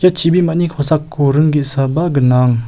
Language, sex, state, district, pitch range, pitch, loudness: Garo, male, Meghalaya, South Garo Hills, 135-170 Hz, 150 Hz, -14 LUFS